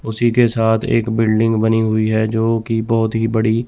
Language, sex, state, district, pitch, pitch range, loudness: Hindi, male, Chandigarh, Chandigarh, 110 Hz, 110-115 Hz, -16 LUFS